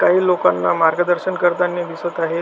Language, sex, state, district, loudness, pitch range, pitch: Marathi, male, Maharashtra, Solapur, -18 LUFS, 165-180 Hz, 175 Hz